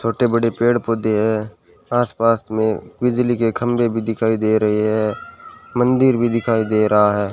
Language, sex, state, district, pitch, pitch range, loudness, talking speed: Hindi, male, Rajasthan, Bikaner, 115 Hz, 110-120 Hz, -18 LUFS, 170 wpm